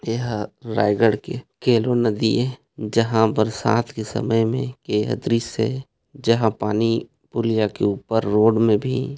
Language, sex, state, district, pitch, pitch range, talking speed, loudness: Hindi, male, Chhattisgarh, Raigarh, 115 Hz, 110-125 Hz, 135 wpm, -21 LUFS